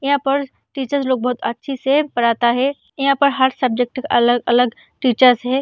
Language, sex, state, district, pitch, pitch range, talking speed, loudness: Hindi, female, Bihar, Samastipur, 260 Hz, 245-275 Hz, 180 wpm, -17 LUFS